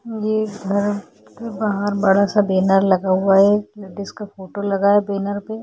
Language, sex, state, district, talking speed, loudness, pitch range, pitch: Hindi, female, Chhattisgarh, Korba, 200 wpm, -18 LUFS, 195-210 Hz, 200 Hz